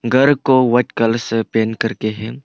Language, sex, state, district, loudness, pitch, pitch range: Hindi, male, Arunachal Pradesh, Papum Pare, -16 LUFS, 120 Hz, 110-130 Hz